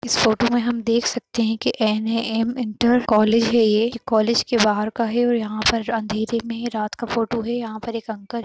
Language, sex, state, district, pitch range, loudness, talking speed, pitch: Hindi, female, Uttar Pradesh, Jyotiba Phule Nagar, 220-235 Hz, -21 LUFS, 225 wpm, 230 Hz